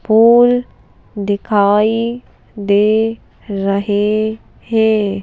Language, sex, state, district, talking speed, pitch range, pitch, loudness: Hindi, female, Madhya Pradesh, Bhopal, 55 wpm, 205-225 Hz, 215 Hz, -14 LUFS